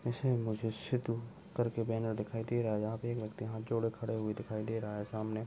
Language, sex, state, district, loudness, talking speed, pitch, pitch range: Hindi, male, Uttar Pradesh, Ghazipur, -37 LUFS, 250 wpm, 115 Hz, 110-115 Hz